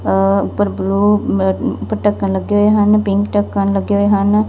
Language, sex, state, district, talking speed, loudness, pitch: Punjabi, female, Punjab, Fazilka, 145 wpm, -15 LUFS, 200 Hz